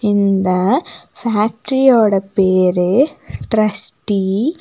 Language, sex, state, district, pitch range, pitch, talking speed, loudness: Tamil, female, Tamil Nadu, Nilgiris, 190-230 Hz, 205 Hz, 65 wpm, -15 LUFS